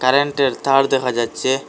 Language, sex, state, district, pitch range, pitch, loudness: Bengali, male, Assam, Hailakandi, 130-140 Hz, 135 Hz, -18 LUFS